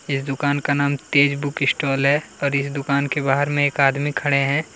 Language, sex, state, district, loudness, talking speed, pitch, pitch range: Hindi, male, Jharkhand, Deoghar, -20 LUFS, 225 wpm, 140 Hz, 140-145 Hz